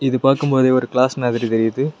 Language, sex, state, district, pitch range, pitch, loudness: Tamil, male, Tamil Nadu, Kanyakumari, 120-135 Hz, 130 Hz, -17 LUFS